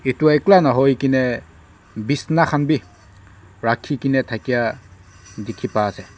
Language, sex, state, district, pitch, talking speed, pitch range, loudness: Nagamese, male, Nagaland, Dimapur, 120 Hz, 125 wpm, 100-135 Hz, -19 LUFS